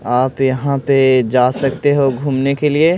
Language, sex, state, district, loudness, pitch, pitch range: Hindi, male, Delhi, New Delhi, -15 LUFS, 135 Hz, 130-140 Hz